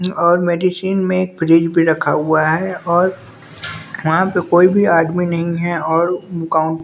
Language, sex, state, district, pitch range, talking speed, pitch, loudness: Hindi, male, Bihar, West Champaran, 160-180 Hz, 160 wpm, 170 Hz, -15 LUFS